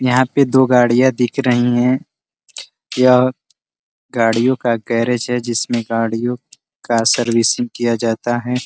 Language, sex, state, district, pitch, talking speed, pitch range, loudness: Hindi, male, Uttar Pradesh, Ghazipur, 120 Hz, 140 wpm, 115-125 Hz, -16 LUFS